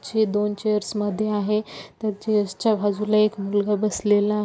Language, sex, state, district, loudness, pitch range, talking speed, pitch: Marathi, female, Maharashtra, Solapur, -23 LUFS, 205-215 Hz, 175 wpm, 210 Hz